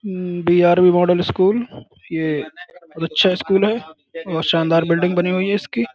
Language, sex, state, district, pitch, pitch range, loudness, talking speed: Hindi, male, Uttar Pradesh, Budaun, 175 Hz, 165-185 Hz, -18 LUFS, 170 wpm